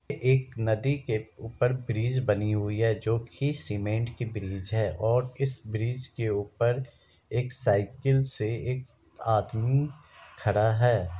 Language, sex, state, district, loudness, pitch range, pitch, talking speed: Hindi, male, Bihar, Kishanganj, -28 LUFS, 110-130 Hz, 115 Hz, 140 wpm